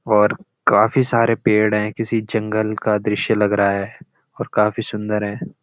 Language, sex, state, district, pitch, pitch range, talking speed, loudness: Hindi, male, Uttarakhand, Uttarkashi, 105 Hz, 105-115 Hz, 170 wpm, -19 LUFS